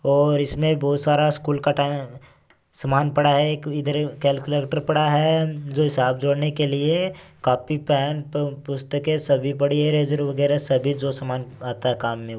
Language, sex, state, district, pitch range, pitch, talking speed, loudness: Hindi, male, Rajasthan, Churu, 140-150 Hz, 145 Hz, 165 wpm, -22 LUFS